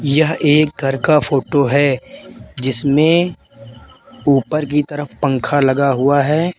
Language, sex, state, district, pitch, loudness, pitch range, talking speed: Hindi, male, Uttar Pradesh, Lalitpur, 145 Hz, -15 LUFS, 135-150 Hz, 125 wpm